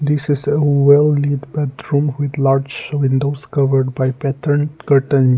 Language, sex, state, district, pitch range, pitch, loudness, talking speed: English, male, Nagaland, Kohima, 135-145 Hz, 140 Hz, -16 LUFS, 145 wpm